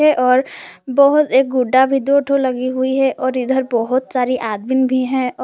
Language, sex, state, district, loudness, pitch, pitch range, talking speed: Hindi, female, Jharkhand, Palamu, -16 LUFS, 260 Hz, 255-270 Hz, 210 wpm